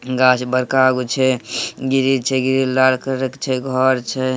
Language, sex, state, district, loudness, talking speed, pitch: Hindi, male, Bihar, Samastipur, -17 LUFS, 180 wpm, 130 Hz